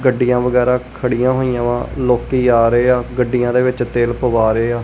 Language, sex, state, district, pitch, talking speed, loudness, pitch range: Punjabi, male, Punjab, Kapurthala, 125 Hz, 200 wpm, -16 LUFS, 120-125 Hz